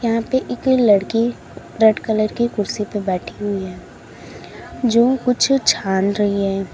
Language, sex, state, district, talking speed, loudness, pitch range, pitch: Hindi, female, Uttar Pradesh, Lalitpur, 150 wpm, -18 LUFS, 200-240 Hz, 220 Hz